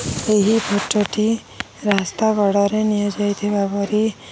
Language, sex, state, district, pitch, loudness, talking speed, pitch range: Odia, female, Odisha, Khordha, 205 Hz, -19 LUFS, 85 wpm, 200-215 Hz